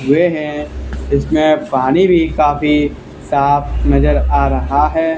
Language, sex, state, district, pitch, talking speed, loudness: Hindi, male, Haryana, Charkhi Dadri, 145 Hz, 125 wpm, -14 LUFS